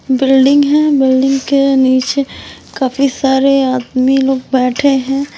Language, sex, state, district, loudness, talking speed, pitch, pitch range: Hindi, female, Himachal Pradesh, Shimla, -12 LUFS, 120 wpm, 270 Hz, 260-275 Hz